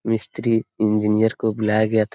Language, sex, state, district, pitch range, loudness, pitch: Hindi, male, Bihar, Darbhanga, 105-110 Hz, -20 LUFS, 110 Hz